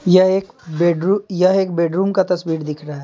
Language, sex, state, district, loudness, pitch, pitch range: Hindi, male, Bihar, Patna, -17 LUFS, 180 Hz, 165-190 Hz